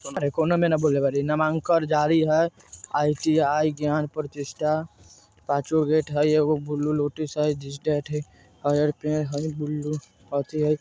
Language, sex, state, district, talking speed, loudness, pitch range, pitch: Bajjika, male, Bihar, Vaishali, 100 wpm, -24 LUFS, 145-155 Hz, 150 Hz